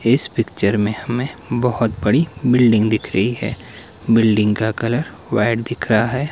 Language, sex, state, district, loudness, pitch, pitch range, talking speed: Hindi, male, Himachal Pradesh, Shimla, -18 LUFS, 115 Hz, 110-125 Hz, 160 wpm